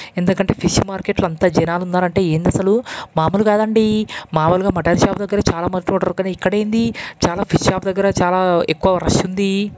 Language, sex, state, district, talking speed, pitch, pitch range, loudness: Telugu, male, Andhra Pradesh, Krishna, 180 wpm, 190 Hz, 180-200 Hz, -17 LUFS